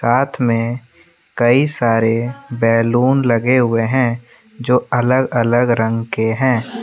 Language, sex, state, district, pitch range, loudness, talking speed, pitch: Hindi, male, Assam, Kamrup Metropolitan, 115-130 Hz, -16 LUFS, 130 wpm, 120 Hz